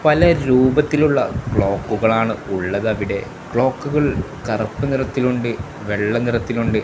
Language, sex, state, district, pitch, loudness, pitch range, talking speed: Malayalam, male, Kerala, Kasaragod, 120 Hz, -19 LUFS, 110-135 Hz, 95 wpm